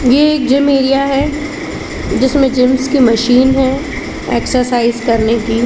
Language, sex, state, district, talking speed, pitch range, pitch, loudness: Hindi, female, Chhattisgarh, Bilaspur, 140 wpm, 245-280 Hz, 265 Hz, -13 LUFS